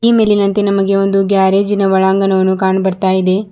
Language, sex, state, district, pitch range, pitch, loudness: Kannada, female, Karnataka, Bidar, 190-200 Hz, 195 Hz, -12 LUFS